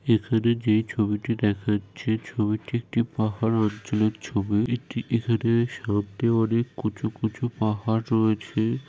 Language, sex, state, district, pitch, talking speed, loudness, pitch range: Bengali, male, West Bengal, North 24 Parganas, 110 Hz, 120 wpm, -25 LUFS, 105-115 Hz